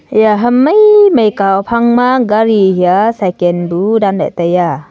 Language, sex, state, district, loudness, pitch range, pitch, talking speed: Wancho, female, Arunachal Pradesh, Longding, -10 LUFS, 185-235 Hz, 210 Hz, 160 wpm